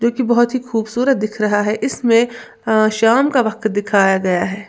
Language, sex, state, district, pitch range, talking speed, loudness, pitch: Hindi, female, Uttar Pradesh, Lalitpur, 210-240 Hz, 165 wpm, -16 LUFS, 225 Hz